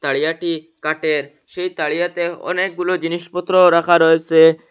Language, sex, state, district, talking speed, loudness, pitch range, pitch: Bengali, male, Assam, Hailakandi, 100 wpm, -17 LUFS, 160-180 Hz, 170 Hz